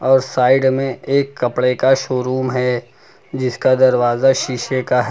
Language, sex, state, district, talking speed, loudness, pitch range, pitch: Hindi, male, Uttar Pradesh, Lucknow, 150 wpm, -16 LUFS, 125-135 Hz, 130 Hz